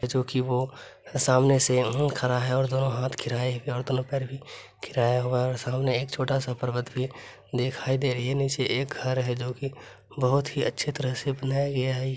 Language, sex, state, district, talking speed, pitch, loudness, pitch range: Maithili, male, Bihar, Begusarai, 210 wpm, 130 Hz, -27 LUFS, 125-135 Hz